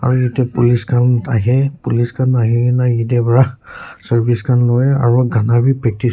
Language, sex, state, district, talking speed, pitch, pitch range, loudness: Nagamese, male, Nagaland, Kohima, 175 wpm, 120 Hz, 120-125 Hz, -14 LUFS